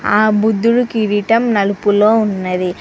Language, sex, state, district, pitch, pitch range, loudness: Telugu, female, Telangana, Mahabubabad, 210 Hz, 205-225 Hz, -14 LUFS